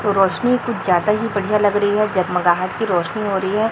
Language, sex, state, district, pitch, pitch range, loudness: Hindi, female, Chhattisgarh, Raipur, 205 Hz, 185-215 Hz, -18 LUFS